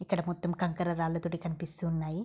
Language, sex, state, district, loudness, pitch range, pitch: Telugu, female, Andhra Pradesh, Guntur, -33 LUFS, 165-175 Hz, 170 Hz